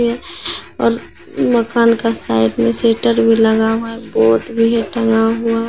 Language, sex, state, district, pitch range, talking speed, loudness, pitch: Hindi, female, Bihar, Katihar, 225-230 Hz, 160 wpm, -15 LUFS, 230 Hz